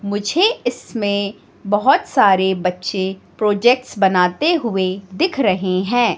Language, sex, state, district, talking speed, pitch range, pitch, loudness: Hindi, female, Madhya Pradesh, Katni, 105 wpm, 190-255 Hz, 205 Hz, -17 LUFS